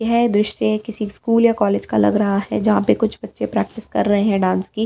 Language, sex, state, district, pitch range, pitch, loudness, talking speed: Hindi, female, Delhi, New Delhi, 200-225 Hz, 210 Hz, -18 LUFS, 245 wpm